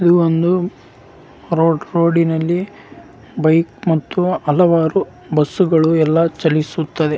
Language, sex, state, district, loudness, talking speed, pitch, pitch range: Kannada, male, Karnataka, Raichur, -16 LUFS, 60 wpm, 165 Hz, 160-175 Hz